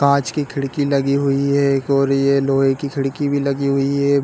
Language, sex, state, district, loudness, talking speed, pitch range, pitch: Hindi, male, Chhattisgarh, Balrampur, -18 LUFS, 225 wpm, 135-140 Hz, 140 Hz